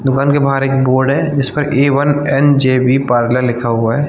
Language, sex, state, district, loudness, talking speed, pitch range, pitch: Hindi, male, Chhattisgarh, Balrampur, -13 LUFS, 235 wpm, 130-140 Hz, 135 Hz